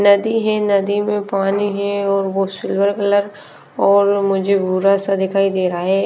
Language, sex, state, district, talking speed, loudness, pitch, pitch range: Hindi, female, Bihar, West Champaran, 180 wpm, -17 LUFS, 200 Hz, 195-200 Hz